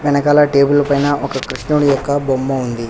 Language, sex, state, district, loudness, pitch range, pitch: Telugu, male, Telangana, Hyderabad, -15 LUFS, 135-145 Hz, 140 Hz